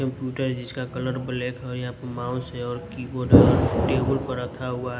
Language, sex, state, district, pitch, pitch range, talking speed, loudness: Hindi, male, Odisha, Nuapada, 125 Hz, 125-130 Hz, 215 wpm, -24 LUFS